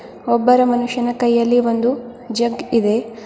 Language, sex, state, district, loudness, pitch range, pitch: Kannada, female, Karnataka, Bidar, -17 LUFS, 235-245 Hz, 240 Hz